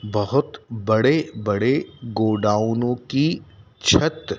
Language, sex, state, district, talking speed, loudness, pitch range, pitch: Hindi, male, Madhya Pradesh, Dhar, 80 wpm, -21 LUFS, 110-135 Hz, 115 Hz